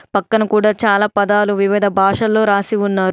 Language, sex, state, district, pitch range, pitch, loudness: Telugu, female, Telangana, Adilabad, 200-215 Hz, 205 Hz, -15 LUFS